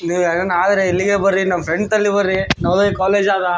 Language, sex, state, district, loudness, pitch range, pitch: Kannada, male, Karnataka, Raichur, -16 LUFS, 175-200 Hz, 190 Hz